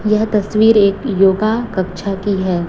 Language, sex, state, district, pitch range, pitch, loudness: Hindi, female, Chhattisgarh, Raipur, 190-215 Hz, 200 Hz, -15 LUFS